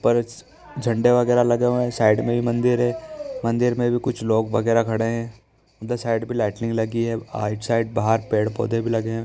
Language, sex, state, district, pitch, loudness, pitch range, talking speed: Hindi, male, Bihar, East Champaran, 115 Hz, -22 LUFS, 115-120 Hz, 195 wpm